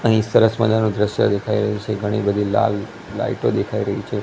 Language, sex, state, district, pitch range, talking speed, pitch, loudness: Gujarati, male, Gujarat, Gandhinagar, 100-110 Hz, 200 wpm, 105 Hz, -19 LUFS